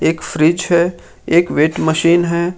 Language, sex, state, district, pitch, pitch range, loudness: Hindi, male, Jharkhand, Ranchi, 170 Hz, 160-175 Hz, -15 LUFS